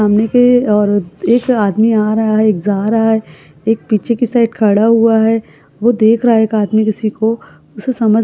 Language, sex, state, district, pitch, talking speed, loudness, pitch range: Hindi, female, Uttar Pradesh, Budaun, 220 Hz, 220 wpm, -13 LUFS, 210-230 Hz